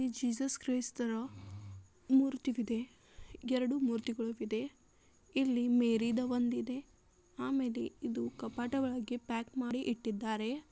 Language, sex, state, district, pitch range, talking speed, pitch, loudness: Kannada, female, Karnataka, Belgaum, 230-260 Hz, 95 wpm, 245 Hz, -36 LUFS